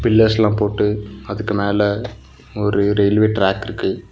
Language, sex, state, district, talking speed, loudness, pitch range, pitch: Tamil, male, Tamil Nadu, Nilgiris, 115 wpm, -18 LUFS, 100-110 Hz, 105 Hz